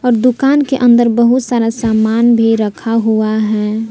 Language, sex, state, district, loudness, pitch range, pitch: Hindi, female, Jharkhand, Palamu, -12 LUFS, 220-240 Hz, 230 Hz